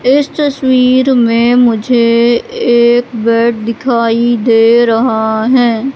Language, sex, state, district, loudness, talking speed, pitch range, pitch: Hindi, female, Madhya Pradesh, Katni, -10 LUFS, 100 wpm, 230-250 Hz, 235 Hz